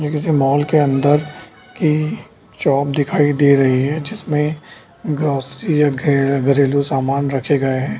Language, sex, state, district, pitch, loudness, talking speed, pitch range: Hindi, male, Bihar, Darbhanga, 145 Hz, -17 LUFS, 150 wpm, 140-150 Hz